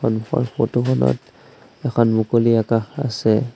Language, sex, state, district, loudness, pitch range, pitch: Assamese, male, Assam, Sonitpur, -19 LUFS, 110-125 Hz, 115 Hz